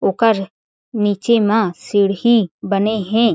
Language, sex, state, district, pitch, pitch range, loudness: Chhattisgarhi, female, Chhattisgarh, Jashpur, 210 Hz, 195-225 Hz, -17 LUFS